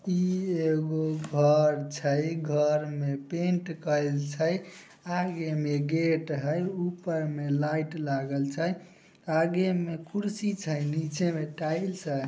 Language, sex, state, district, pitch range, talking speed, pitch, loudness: Maithili, male, Bihar, Samastipur, 150-175 Hz, 125 wpm, 160 Hz, -29 LUFS